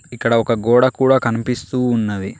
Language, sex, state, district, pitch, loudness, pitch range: Telugu, male, Telangana, Mahabubabad, 120 Hz, -17 LUFS, 115-125 Hz